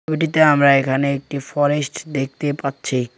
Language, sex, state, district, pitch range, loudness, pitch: Bengali, male, West Bengal, Cooch Behar, 135-150 Hz, -18 LUFS, 140 Hz